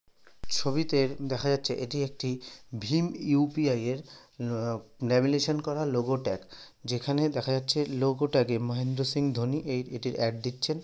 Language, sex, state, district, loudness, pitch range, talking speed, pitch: Bengali, male, West Bengal, North 24 Parganas, -29 LUFS, 125-145 Hz, 135 wpm, 135 Hz